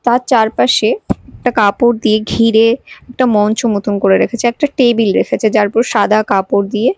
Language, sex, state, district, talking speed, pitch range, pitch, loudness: Bengali, female, Odisha, Malkangiri, 165 wpm, 210-245 Hz, 225 Hz, -13 LUFS